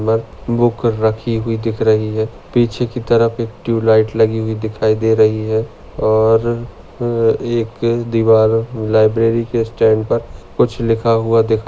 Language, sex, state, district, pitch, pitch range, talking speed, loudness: Hindi, male, Maharashtra, Sindhudurg, 115 Hz, 110-115 Hz, 150 wpm, -16 LUFS